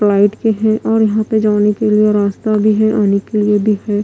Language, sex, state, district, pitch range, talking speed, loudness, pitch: Hindi, female, Bihar, Katihar, 205-215 Hz, 255 wpm, -14 LUFS, 210 Hz